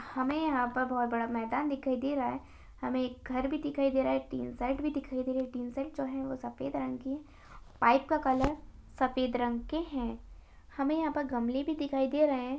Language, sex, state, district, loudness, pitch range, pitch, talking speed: Hindi, female, Bihar, Jahanabad, -32 LUFS, 245-280 Hz, 260 Hz, 235 wpm